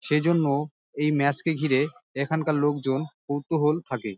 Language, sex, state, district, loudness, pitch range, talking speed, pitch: Bengali, male, West Bengal, Dakshin Dinajpur, -25 LUFS, 140-155 Hz, 55 wpm, 145 Hz